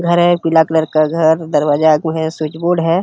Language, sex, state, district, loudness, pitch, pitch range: Hindi, male, Uttar Pradesh, Hamirpur, -14 LUFS, 160 Hz, 155-170 Hz